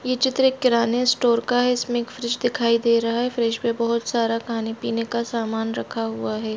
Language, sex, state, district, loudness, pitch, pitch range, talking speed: Hindi, female, Bihar, Bhagalpur, -22 LUFS, 235 Hz, 230-245 Hz, 220 wpm